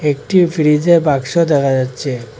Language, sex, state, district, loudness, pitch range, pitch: Bengali, male, Assam, Hailakandi, -14 LUFS, 135-165 Hz, 145 Hz